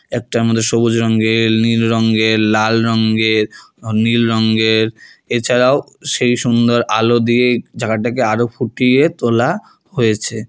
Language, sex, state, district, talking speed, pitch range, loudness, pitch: Bengali, male, West Bengal, Alipurduar, 120 wpm, 110-120 Hz, -14 LUFS, 115 Hz